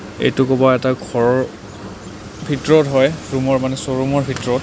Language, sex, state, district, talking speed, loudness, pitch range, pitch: Assamese, male, Assam, Kamrup Metropolitan, 170 wpm, -17 LUFS, 120-135 Hz, 130 Hz